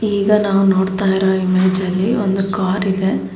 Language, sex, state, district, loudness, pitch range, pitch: Kannada, female, Karnataka, Bangalore, -16 LUFS, 190-200 Hz, 190 Hz